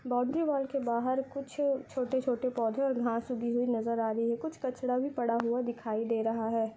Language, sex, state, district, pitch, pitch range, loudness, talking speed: Hindi, female, Uttar Pradesh, Budaun, 245 Hz, 230-265 Hz, -32 LUFS, 215 wpm